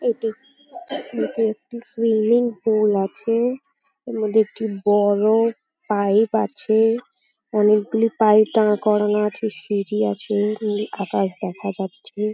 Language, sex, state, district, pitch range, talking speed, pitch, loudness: Bengali, female, West Bengal, Paschim Medinipur, 210-230 Hz, 110 wpm, 215 Hz, -20 LUFS